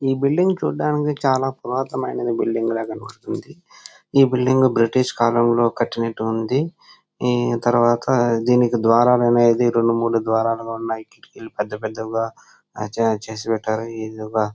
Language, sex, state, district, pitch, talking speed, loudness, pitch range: Telugu, male, Andhra Pradesh, Chittoor, 115 Hz, 125 wpm, -20 LUFS, 115-125 Hz